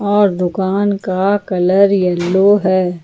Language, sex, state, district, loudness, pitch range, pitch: Hindi, female, Jharkhand, Ranchi, -14 LUFS, 185-200 Hz, 190 Hz